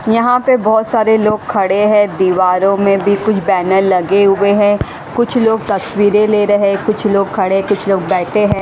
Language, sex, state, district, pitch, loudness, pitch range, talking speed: Hindi, female, Haryana, Rohtak, 205 Hz, -13 LUFS, 195-215 Hz, 190 wpm